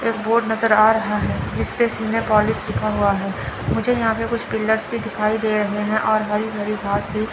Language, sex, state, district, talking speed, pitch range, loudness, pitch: Hindi, male, Chandigarh, Chandigarh, 230 wpm, 210-225 Hz, -20 LUFS, 220 Hz